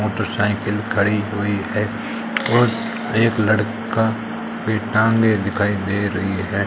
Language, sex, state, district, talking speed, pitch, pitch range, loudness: Hindi, male, Rajasthan, Bikaner, 115 wpm, 105 Hz, 105-110 Hz, -20 LUFS